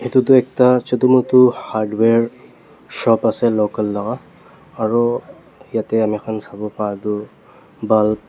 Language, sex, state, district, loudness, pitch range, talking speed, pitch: Nagamese, male, Nagaland, Dimapur, -17 LUFS, 105-125 Hz, 115 wpm, 110 Hz